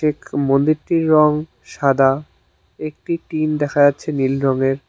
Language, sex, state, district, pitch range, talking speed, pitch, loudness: Bengali, male, West Bengal, Cooch Behar, 135-155 Hz, 110 wpm, 145 Hz, -18 LUFS